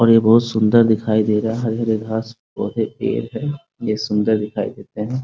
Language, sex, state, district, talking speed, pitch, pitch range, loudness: Hindi, male, Bihar, Muzaffarpur, 205 wpm, 110 Hz, 110-115 Hz, -19 LUFS